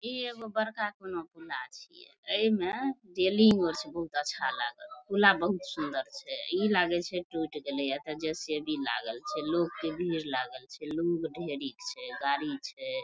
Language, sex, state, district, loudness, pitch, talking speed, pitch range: Maithili, female, Bihar, Madhepura, -31 LUFS, 180 Hz, 170 wpm, 155-240 Hz